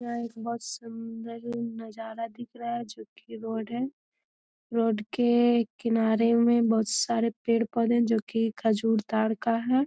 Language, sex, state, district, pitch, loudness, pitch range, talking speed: Hindi, female, Bihar, Jamui, 230 Hz, -27 LUFS, 225-235 Hz, 165 wpm